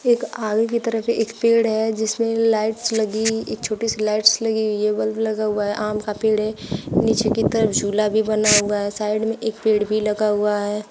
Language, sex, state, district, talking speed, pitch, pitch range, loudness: Hindi, female, Uttar Pradesh, Shamli, 225 wpm, 215 Hz, 210-225 Hz, -20 LUFS